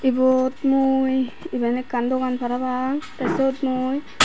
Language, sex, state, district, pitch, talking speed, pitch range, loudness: Chakma, female, Tripura, Dhalai, 260 Hz, 125 wpm, 255-265 Hz, -22 LUFS